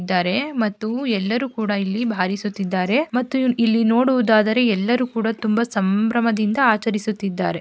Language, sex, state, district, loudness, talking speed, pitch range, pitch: Kannada, female, Karnataka, Gulbarga, -20 LUFS, 110 wpm, 205-235 Hz, 225 Hz